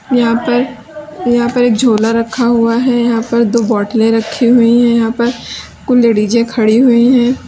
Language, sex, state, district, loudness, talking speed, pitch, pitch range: Hindi, female, Uttar Pradesh, Lalitpur, -11 LUFS, 185 wpm, 235 Hz, 230-245 Hz